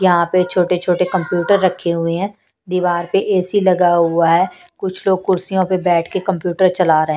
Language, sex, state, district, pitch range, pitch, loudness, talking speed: Hindi, female, Punjab, Pathankot, 175-190 Hz, 180 Hz, -16 LUFS, 190 wpm